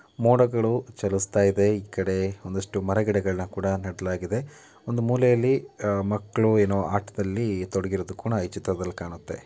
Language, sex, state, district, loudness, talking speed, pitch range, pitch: Kannada, male, Karnataka, Mysore, -25 LUFS, 120 wpm, 95-110 Hz, 100 Hz